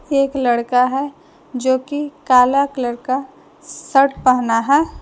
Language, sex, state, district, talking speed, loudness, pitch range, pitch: Hindi, female, Jharkhand, Deoghar, 130 wpm, -17 LUFS, 250-285 Hz, 265 Hz